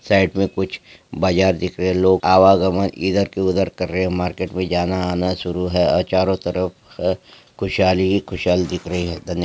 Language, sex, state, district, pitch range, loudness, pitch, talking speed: Marwari, male, Rajasthan, Nagaur, 90-95 Hz, -19 LUFS, 95 Hz, 195 wpm